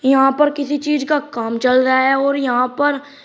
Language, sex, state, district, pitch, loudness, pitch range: Hindi, male, Uttar Pradesh, Shamli, 275 Hz, -16 LUFS, 260-290 Hz